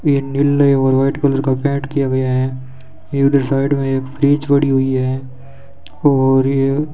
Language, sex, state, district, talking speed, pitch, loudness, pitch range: Hindi, male, Rajasthan, Bikaner, 200 wpm, 135 Hz, -16 LUFS, 130-140 Hz